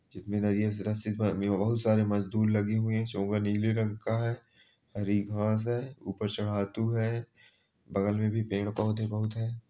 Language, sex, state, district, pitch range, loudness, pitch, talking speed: Hindi, male, Bihar, Supaul, 105-110 Hz, -30 LUFS, 105 Hz, 180 wpm